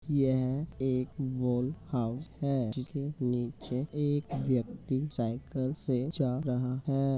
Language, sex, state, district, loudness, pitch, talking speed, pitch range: Hindi, male, Uttar Pradesh, Hamirpur, -32 LUFS, 130 Hz, 115 wpm, 125-140 Hz